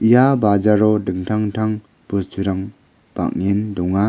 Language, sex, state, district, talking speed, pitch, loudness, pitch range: Garo, male, Meghalaya, West Garo Hills, 105 wpm, 105 Hz, -18 LUFS, 95-110 Hz